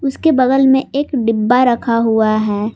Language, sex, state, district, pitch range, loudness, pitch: Hindi, female, Jharkhand, Palamu, 220-270 Hz, -14 LUFS, 250 Hz